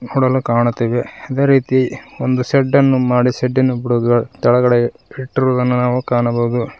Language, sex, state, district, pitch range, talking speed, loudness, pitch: Kannada, male, Karnataka, Koppal, 120-130 Hz, 125 wpm, -16 LUFS, 125 Hz